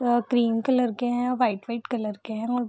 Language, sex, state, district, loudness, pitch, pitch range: Hindi, female, Bihar, Vaishali, -25 LUFS, 240 Hz, 225-245 Hz